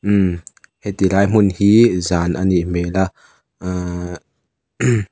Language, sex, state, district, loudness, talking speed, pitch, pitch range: Mizo, male, Mizoram, Aizawl, -17 LUFS, 130 wpm, 95 Hz, 90-100 Hz